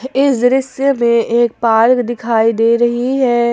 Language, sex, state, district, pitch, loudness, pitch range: Hindi, female, Jharkhand, Ranchi, 240 Hz, -13 LUFS, 235-260 Hz